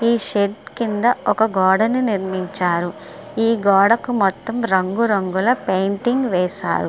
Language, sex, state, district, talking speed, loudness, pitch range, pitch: Telugu, female, Andhra Pradesh, Srikakulam, 120 wpm, -18 LUFS, 190-230 Hz, 200 Hz